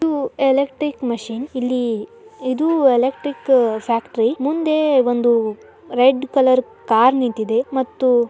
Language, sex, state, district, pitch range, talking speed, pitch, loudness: Kannada, male, Karnataka, Dharwad, 240-275 Hz, 100 wpm, 255 Hz, -18 LUFS